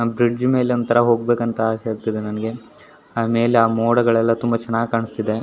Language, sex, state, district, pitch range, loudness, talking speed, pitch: Kannada, male, Karnataka, Shimoga, 115-120 Hz, -19 LUFS, 175 wpm, 115 Hz